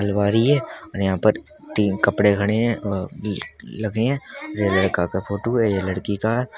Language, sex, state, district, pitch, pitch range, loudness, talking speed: Hindi, male, Uttar Pradesh, Budaun, 105 Hz, 100-115 Hz, -21 LUFS, 220 wpm